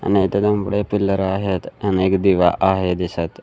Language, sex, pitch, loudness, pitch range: Marathi, male, 95 Hz, -19 LUFS, 95-100 Hz